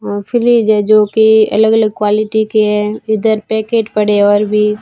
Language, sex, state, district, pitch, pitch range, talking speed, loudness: Hindi, female, Rajasthan, Barmer, 215 Hz, 210-220 Hz, 200 wpm, -12 LUFS